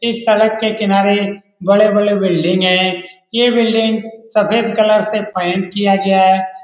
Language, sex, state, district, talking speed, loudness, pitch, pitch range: Hindi, male, Bihar, Lakhisarai, 145 wpm, -14 LUFS, 205 Hz, 190-220 Hz